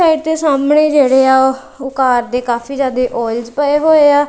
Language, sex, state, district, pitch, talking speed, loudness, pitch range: Punjabi, female, Punjab, Kapurthala, 270 Hz, 180 wpm, -13 LUFS, 255-295 Hz